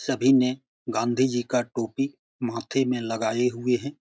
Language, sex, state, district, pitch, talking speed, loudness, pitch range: Hindi, male, Bihar, Saran, 125 Hz, 165 wpm, -25 LUFS, 120-130 Hz